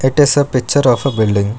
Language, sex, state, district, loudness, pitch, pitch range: English, male, Karnataka, Bangalore, -13 LUFS, 130 Hz, 110-140 Hz